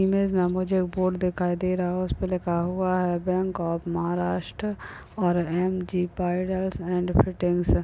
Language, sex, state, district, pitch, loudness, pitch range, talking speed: Hindi, male, Maharashtra, Chandrapur, 180 Hz, -26 LUFS, 175-185 Hz, 145 wpm